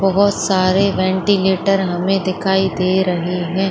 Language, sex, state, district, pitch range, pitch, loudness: Hindi, female, Jharkhand, Sahebganj, 185-195 Hz, 190 Hz, -16 LUFS